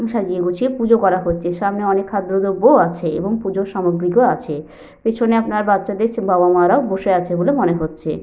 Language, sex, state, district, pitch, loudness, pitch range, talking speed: Bengali, female, Jharkhand, Sahebganj, 195 Hz, -17 LUFS, 175-220 Hz, 175 wpm